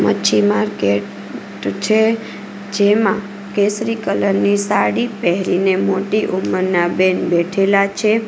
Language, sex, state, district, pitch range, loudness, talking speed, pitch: Gujarati, female, Gujarat, Valsad, 175-210 Hz, -17 LUFS, 95 wpm, 195 Hz